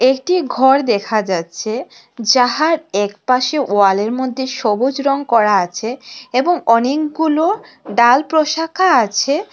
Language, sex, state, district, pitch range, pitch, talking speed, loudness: Bengali, female, Tripura, West Tripura, 225-300 Hz, 255 Hz, 105 wpm, -15 LUFS